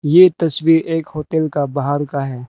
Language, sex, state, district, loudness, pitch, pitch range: Hindi, male, Arunachal Pradesh, Lower Dibang Valley, -16 LUFS, 155 Hz, 145-165 Hz